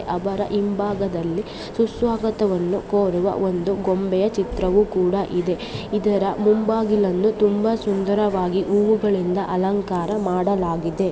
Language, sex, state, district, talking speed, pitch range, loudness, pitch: Kannada, female, Karnataka, Gulbarga, 85 wpm, 185-210 Hz, -21 LUFS, 200 Hz